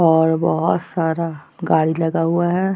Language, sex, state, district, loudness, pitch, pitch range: Hindi, female, Uttar Pradesh, Jyotiba Phule Nagar, -18 LUFS, 165 Hz, 160-170 Hz